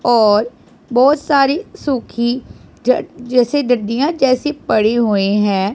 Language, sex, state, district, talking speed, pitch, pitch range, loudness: Hindi, female, Punjab, Pathankot, 115 wpm, 245 Hz, 220-280 Hz, -15 LUFS